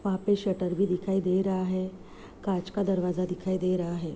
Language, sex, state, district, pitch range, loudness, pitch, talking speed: Hindi, female, Chhattisgarh, Balrampur, 180-195 Hz, -29 LUFS, 185 Hz, 175 wpm